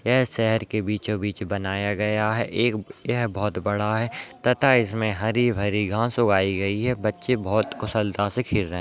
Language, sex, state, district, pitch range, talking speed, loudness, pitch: Hindi, male, Uttarakhand, Tehri Garhwal, 105-120 Hz, 190 wpm, -24 LUFS, 110 Hz